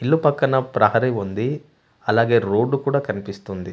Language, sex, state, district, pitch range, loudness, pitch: Telugu, male, Andhra Pradesh, Manyam, 105-140 Hz, -20 LUFS, 120 Hz